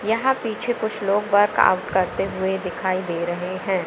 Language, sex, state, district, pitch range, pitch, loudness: Hindi, female, Madhya Pradesh, Katni, 185-215 Hz, 195 Hz, -22 LUFS